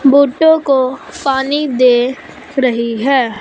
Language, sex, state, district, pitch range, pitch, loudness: Hindi, female, Punjab, Fazilka, 250-280 Hz, 270 Hz, -13 LUFS